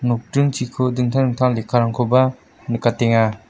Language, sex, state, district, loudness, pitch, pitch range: Garo, female, Meghalaya, West Garo Hills, -19 LUFS, 120 Hz, 115-130 Hz